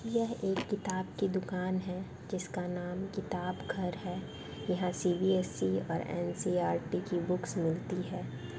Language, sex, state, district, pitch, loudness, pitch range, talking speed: Hindi, female, Bihar, Darbhanga, 180 Hz, -35 LUFS, 180-190 Hz, 125 wpm